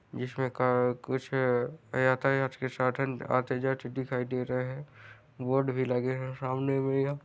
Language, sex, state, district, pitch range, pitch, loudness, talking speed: Hindi, male, Chhattisgarh, Raigarh, 125-135 Hz, 130 Hz, -30 LUFS, 155 wpm